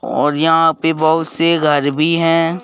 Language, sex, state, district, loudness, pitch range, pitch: Hindi, male, Madhya Pradesh, Bhopal, -14 LUFS, 150-165 Hz, 160 Hz